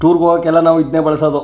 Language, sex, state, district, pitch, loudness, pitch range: Kannada, male, Karnataka, Chamarajanagar, 160 Hz, -12 LUFS, 155-170 Hz